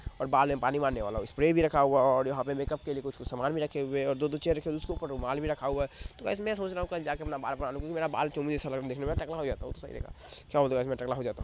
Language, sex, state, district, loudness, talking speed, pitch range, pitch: Hindi, male, Bihar, Madhepura, -31 LUFS, 340 wpm, 135-155 Hz, 145 Hz